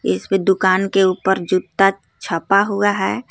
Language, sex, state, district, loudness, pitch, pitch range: Hindi, female, Jharkhand, Garhwa, -17 LUFS, 190 Hz, 185-195 Hz